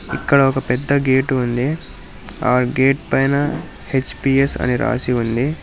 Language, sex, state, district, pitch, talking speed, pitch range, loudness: Telugu, male, Telangana, Hyderabad, 135 Hz, 130 wpm, 125-140 Hz, -18 LUFS